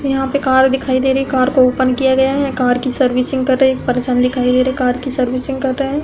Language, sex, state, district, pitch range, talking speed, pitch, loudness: Hindi, female, Uttar Pradesh, Hamirpur, 255-265 Hz, 300 wpm, 260 Hz, -15 LUFS